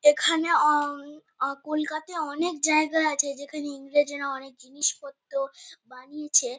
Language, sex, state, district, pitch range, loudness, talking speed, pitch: Bengali, female, West Bengal, Kolkata, 275-310 Hz, -26 LUFS, 120 wpm, 290 Hz